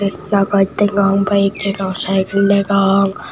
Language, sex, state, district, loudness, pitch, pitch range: Chakma, male, Tripura, Unakoti, -15 LUFS, 200 Hz, 195-200 Hz